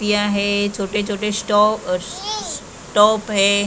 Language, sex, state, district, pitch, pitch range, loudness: Hindi, female, Maharashtra, Mumbai Suburban, 205 Hz, 200-210 Hz, -19 LUFS